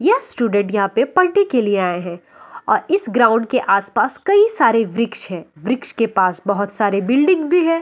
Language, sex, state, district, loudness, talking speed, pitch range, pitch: Hindi, female, Delhi, New Delhi, -17 LUFS, 215 wpm, 200-330 Hz, 230 Hz